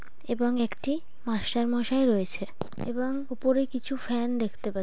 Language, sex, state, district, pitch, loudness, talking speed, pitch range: Bengali, female, West Bengal, North 24 Parganas, 240 Hz, -29 LUFS, 135 wpm, 230-260 Hz